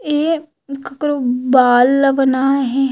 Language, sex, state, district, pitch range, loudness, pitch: Chhattisgarhi, female, Chhattisgarh, Raigarh, 260-290 Hz, -15 LUFS, 275 Hz